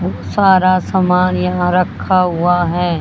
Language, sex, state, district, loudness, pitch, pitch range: Hindi, male, Haryana, Charkhi Dadri, -14 LUFS, 180 Hz, 175-185 Hz